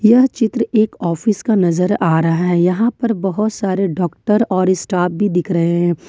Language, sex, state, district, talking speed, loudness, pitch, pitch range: Hindi, female, Jharkhand, Ranchi, 195 wpm, -16 LUFS, 190 Hz, 175-220 Hz